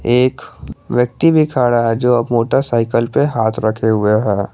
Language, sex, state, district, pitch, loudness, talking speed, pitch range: Hindi, male, Jharkhand, Garhwa, 120 Hz, -15 LUFS, 160 wpm, 110-125 Hz